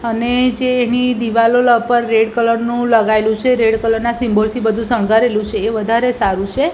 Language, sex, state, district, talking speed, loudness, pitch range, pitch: Gujarati, female, Gujarat, Gandhinagar, 205 wpm, -15 LUFS, 225-245 Hz, 230 Hz